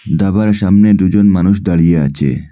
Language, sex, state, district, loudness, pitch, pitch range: Bengali, male, Assam, Hailakandi, -11 LUFS, 95 Hz, 85-100 Hz